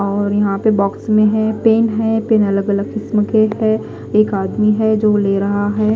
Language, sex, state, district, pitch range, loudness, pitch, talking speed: Hindi, female, Odisha, Khordha, 205-220 Hz, -15 LUFS, 215 Hz, 210 wpm